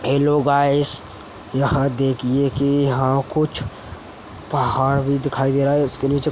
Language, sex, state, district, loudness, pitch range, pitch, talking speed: Hindi, male, Uttar Pradesh, Hamirpur, -19 LUFS, 135-140 Hz, 140 Hz, 150 wpm